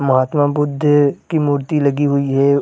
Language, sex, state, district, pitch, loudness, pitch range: Hindi, male, Bihar, Gaya, 145 Hz, -16 LUFS, 140-150 Hz